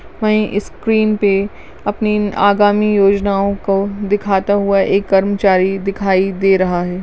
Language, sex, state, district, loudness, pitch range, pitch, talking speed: Hindi, female, Goa, North and South Goa, -15 LUFS, 195-205 Hz, 200 Hz, 130 wpm